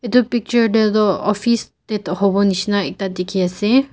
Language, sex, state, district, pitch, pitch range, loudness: Nagamese, female, Nagaland, Dimapur, 210 Hz, 195-235 Hz, -18 LUFS